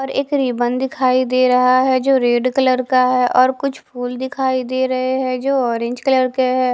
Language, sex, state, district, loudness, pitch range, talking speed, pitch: Hindi, female, Bihar, West Champaran, -17 LUFS, 255-260 Hz, 215 wpm, 255 Hz